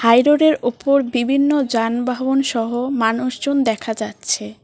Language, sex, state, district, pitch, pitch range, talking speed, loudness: Bengali, female, West Bengal, Cooch Behar, 245 Hz, 230-275 Hz, 115 wpm, -18 LUFS